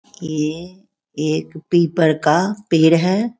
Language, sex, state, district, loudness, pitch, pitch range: Hindi, female, Bihar, Begusarai, -18 LUFS, 170 Hz, 155-190 Hz